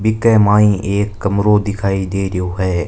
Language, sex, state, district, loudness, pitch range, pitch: Marwari, male, Rajasthan, Nagaur, -15 LUFS, 95-105 Hz, 100 Hz